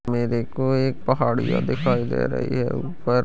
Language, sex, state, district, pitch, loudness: Hindi, female, Chhattisgarh, Balrampur, 120 Hz, -23 LUFS